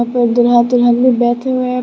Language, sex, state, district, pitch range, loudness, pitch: Hindi, female, Tripura, West Tripura, 240-250 Hz, -12 LUFS, 240 Hz